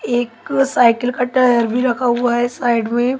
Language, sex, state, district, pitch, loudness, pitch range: Hindi, female, Haryana, Charkhi Dadri, 245 Hz, -16 LUFS, 240-250 Hz